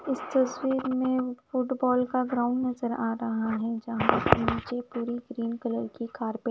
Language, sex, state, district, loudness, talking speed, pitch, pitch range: Hindi, female, Punjab, Fazilka, -28 LUFS, 175 wpm, 245 Hz, 230-255 Hz